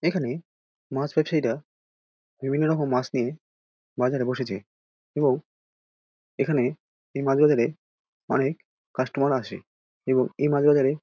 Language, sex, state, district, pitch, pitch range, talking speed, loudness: Bengali, male, West Bengal, Dakshin Dinajpur, 135 Hz, 125-150 Hz, 120 wpm, -25 LUFS